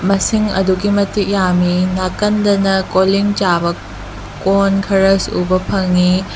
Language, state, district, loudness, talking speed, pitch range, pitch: Manipuri, Manipur, Imphal West, -15 LUFS, 105 wpm, 180-200 Hz, 190 Hz